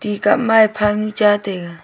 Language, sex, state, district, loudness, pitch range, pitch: Wancho, female, Arunachal Pradesh, Longding, -16 LUFS, 205-215 Hz, 210 Hz